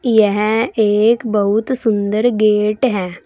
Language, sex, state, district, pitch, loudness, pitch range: Hindi, female, Uttar Pradesh, Saharanpur, 215 Hz, -15 LUFS, 210-230 Hz